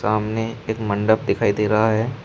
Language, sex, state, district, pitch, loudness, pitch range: Hindi, male, Uttar Pradesh, Shamli, 110 Hz, -20 LUFS, 105-110 Hz